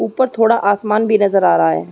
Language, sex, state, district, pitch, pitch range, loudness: Hindi, female, Uttar Pradesh, Gorakhpur, 210 Hz, 190-225 Hz, -14 LUFS